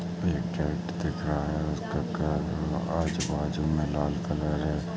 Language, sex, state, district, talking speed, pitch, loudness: Hindi, male, Chhattisgarh, Bastar, 145 wpm, 75 Hz, -30 LUFS